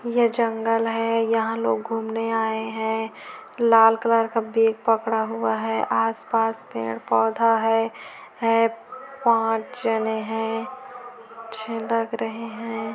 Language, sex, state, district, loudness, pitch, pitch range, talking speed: Hindi, female, Chhattisgarh, Korba, -23 LUFS, 225 Hz, 225-230 Hz, 125 wpm